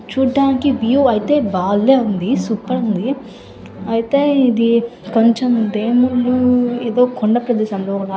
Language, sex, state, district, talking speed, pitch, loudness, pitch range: Telugu, female, Andhra Pradesh, Guntur, 110 wpm, 240 Hz, -16 LUFS, 215-255 Hz